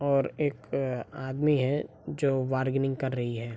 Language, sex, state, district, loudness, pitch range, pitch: Hindi, male, Bihar, East Champaran, -29 LUFS, 130-140 Hz, 135 Hz